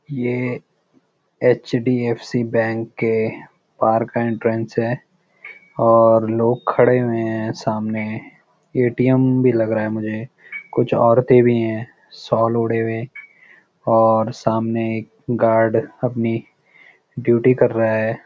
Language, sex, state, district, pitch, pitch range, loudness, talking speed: Hindi, male, Uttarakhand, Uttarkashi, 115 Hz, 115-125 Hz, -18 LUFS, 120 wpm